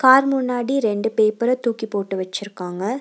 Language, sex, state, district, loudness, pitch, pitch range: Tamil, female, Tamil Nadu, Nilgiris, -21 LUFS, 220 Hz, 200-255 Hz